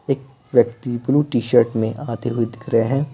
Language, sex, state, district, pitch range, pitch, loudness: Hindi, male, Bihar, Patna, 120-135 Hz, 120 Hz, -20 LUFS